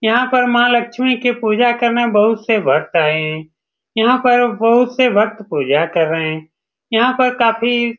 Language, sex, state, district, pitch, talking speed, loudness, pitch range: Hindi, male, Bihar, Saran, 235 Hz, 180 wpm, -15 LUFS, 210-245 Hz